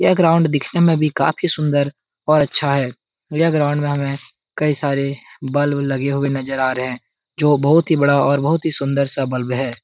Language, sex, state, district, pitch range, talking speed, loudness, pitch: Hindi, male, Bihar, Jahanabad, 135-150 Hz, 200 wpm, -18 LUFS, 140 Hz